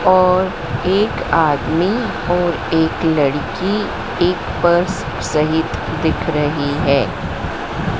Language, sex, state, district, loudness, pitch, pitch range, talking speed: Hindi, female, Madhya Pradesh, Dhar, -17 LUFS, 165 Hz, 150-180 Hz, 90 wpm